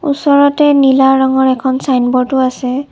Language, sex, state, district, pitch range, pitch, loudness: Assamese, female, Assam, Kamrup Metropolitan, 260-285 Hz, 265 Hz, -11 LUFS